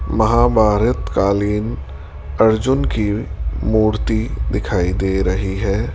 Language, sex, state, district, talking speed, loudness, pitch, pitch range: Hindi, male, Rajasthan, Jaipur, 90 wpm, -18 LUFS, 100 Hz, 90-110 Hz